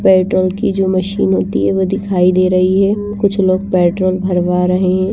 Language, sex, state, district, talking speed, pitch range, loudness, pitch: Hindi, female, Bihar, Patna, 200 wpm, 185-195 Hz, -14 LUFS, 185 Hz